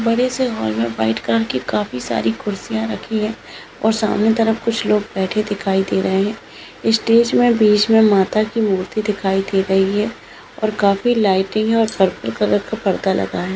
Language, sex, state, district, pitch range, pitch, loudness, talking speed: Hindi, female, Maharashtra, Sindhudurg, 190-220 Hz, 205 Hz, -18 LUFS, 190 wpm